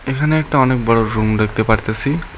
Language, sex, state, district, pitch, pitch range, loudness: Bengali, male, West Bengal, Alipurduar, 115 Hz, 110-140 Hz, -15 LUFS